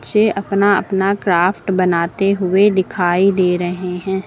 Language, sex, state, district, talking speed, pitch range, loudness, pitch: Hindi, female, Uttar Pradesh, Lucknow, 140 wpm, 180-200 Hz, -16 LUFS, 190 Hz